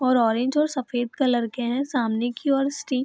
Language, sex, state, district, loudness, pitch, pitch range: Hindi, female, Bihar, Gopalganj, -24 LUFS, 255 Hz, 240-275 Hz